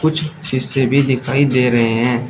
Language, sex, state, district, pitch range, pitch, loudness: Hindi, male, Uttar Pradesh, Shamli, 125-140 Hz, 130 Hz, -15 LUFS